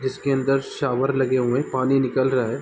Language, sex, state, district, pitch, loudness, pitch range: Hindi, male, Bihar, Gopalganj, 130 Hz, -22 LUFS, 130-135 Hz